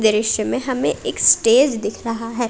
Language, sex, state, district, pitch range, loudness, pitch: Hindi, female, Jharkhand, Palamu, 220-250 Hz, -17 LUFS, 230 Hz